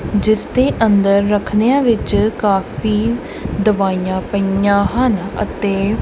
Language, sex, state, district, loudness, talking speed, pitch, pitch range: Punjabi, male, Punjab, Kapurthala, -16 LUFS, 100 wpm, 205 Hz, 195-220 Hz